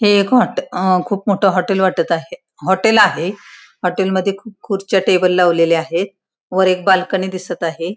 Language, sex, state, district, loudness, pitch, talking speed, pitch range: Marathi, female, Maharashtra, Pune, -16 LUFS, 190 Hz, 175 wpm, 180-200 Hz